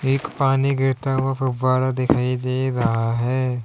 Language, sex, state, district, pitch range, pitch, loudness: Hindi, male, Uttar Pradesh, Lalitpur, 125-135 Hz, 130 Hz, -21 LUFS